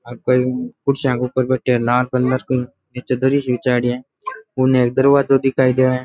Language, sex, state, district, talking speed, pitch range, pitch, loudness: Rajasthani, male, Rajasthan, Nagaur, 200 wpm, 125-135 Hz, 130 Hz, -17 LUFS